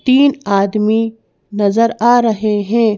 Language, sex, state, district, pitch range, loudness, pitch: Hindi, female, Madhya Pradesh, Bhopal, 210-235 Hz, -14 LUFS, 220 Hz